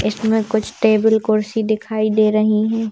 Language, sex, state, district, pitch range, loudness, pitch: Hindi, female, Madhya Pradesh, Bhopal, 215-220 Hz, -17 LUFS, 220 Hz